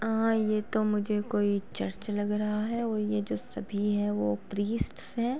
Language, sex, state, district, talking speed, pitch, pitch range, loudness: Hindi, female, Uttar Pradesh, Varanasi, 190 wpm, 210 Hz, 205-220 Hz, -30 LUFS